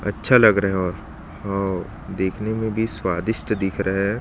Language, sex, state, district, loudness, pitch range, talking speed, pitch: Hindi, male, Chhattisgarh, Jashpur, -21 LUFS, 95-105 Hz, 185 wpm, 100 Hz